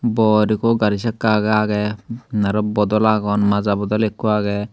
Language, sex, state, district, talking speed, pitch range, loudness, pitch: Chakma, male, Tripura, Dhalai, 165 wpm, 105-110 Hz, -18 LUFS, 105 Hz